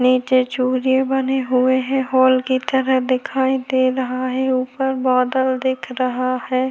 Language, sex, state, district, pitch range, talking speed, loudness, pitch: Hindi, female, Chhattisgarh, Korba, 255-260 Hz, 150 wpm, -18 LUFS, 260 Hz